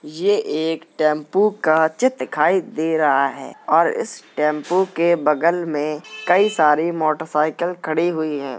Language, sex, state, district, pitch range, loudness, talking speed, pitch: Hindi, male, Uttar Pradesh, Jalaun, 150-180 Hz, -19 LUFS, 145 wpm, 160 Hz